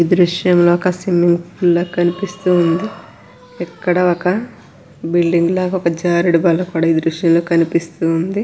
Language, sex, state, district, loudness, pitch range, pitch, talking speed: Telugu, female, Andhra Pradesh, Krishna, -15 LUFS, 170-180 Hz, 175 Hz, 140 wpm